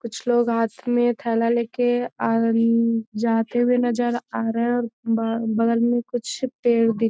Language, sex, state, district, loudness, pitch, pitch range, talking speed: Hindi, female, Bihar, Jamui, -22 LUFS, 235 Hz, 230-240 Hz, 175 wpm